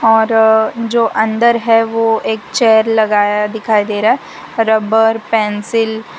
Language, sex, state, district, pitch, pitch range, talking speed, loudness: Hindi, female, Gujarat, Valsad, 220 Hz, 220-225 Hz, 145 wpm, -13 LUFS